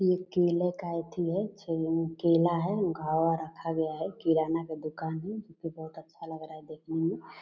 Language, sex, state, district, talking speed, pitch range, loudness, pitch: Hindi, female, Bihar, Purnia, 195 wpm, 160-175 Hz, -31 LUFS, 165 Hz